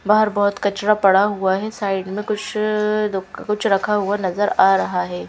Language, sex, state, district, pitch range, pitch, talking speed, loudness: Hindi, female, Chhattisgarh, Raipur, 195-210 Hz, 205 Hz, 180 wpm, -19 LUFS